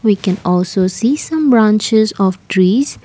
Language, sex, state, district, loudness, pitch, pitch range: English, female, Assam, Kamrup Metropolitan, -14 LUFS, 210 Hz, 185-230 Hz